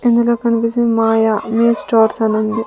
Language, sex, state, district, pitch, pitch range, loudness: Telugu, female, Andhra Pradesh, Sri Satya Sai, 225 Hz, 220-235 Hz, -14 LUFS